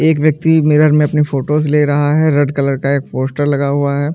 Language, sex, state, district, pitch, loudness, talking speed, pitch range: Hindi, male, Maharashtra, Mumbai Suburban, 145 Hz, -13 LUFS, 275 wpm, 140-150 Hz